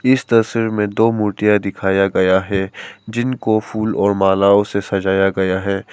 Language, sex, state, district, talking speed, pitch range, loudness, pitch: Hindi, male, Arunachal Pradesh, Papum Pare, 160 wpm, 95-110 Hz, -16 LUFS, 100 Hz